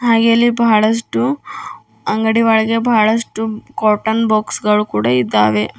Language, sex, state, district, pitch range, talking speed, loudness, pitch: Kannada, female, Karnataka, Bidar, 210-230 Hz, 115 wpm, -15 LUFS, 220 Hz